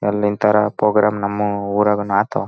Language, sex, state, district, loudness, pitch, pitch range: Kannada, male, Karnataka, Raichur, -17 LUFS, 105 Hz, 100-105 Hz